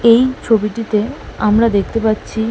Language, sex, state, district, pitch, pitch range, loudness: Bengali, female, West Bengal, Malda, 225 Hz, 215-230 Hz, -16 LUFS